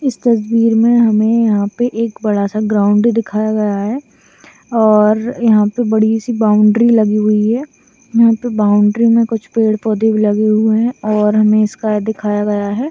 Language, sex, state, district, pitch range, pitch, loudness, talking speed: Hindi, female, Bihar, Purnia, 210-230 Hz, 220 Hz, -13 LUFS, 175 wpm